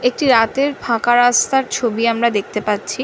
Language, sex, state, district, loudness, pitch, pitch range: Bengali, female, West Bengal, North 24 Parganas, -16 LUFS, 240 Hz, 225-260 Hz